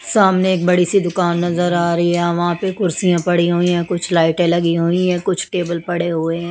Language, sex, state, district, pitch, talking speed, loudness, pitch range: Hindi, female, Chandigarh, Chandigarh, 175 Hz, 230 wpm, -16 LUFS, 170-180 Hz